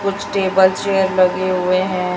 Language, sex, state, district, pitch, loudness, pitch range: Hindi, female, Chhattisgarh, Raipur, 185 Hz, -16 LUFS, 185-195 Hz